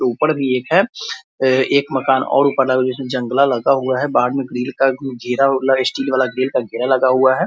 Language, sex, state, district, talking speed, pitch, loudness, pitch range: Hindi, male, Bihar, Muzaffarpur, 210 wpm, 130 Hz, -17 LUFS, 130-135 Hz